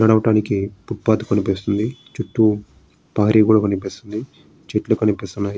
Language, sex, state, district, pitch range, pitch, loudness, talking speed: Telugu, male, Andhra Pradesh, Srikakulam, 100-110 Hz, 105 Hz, -19 LUFS, 110 wpm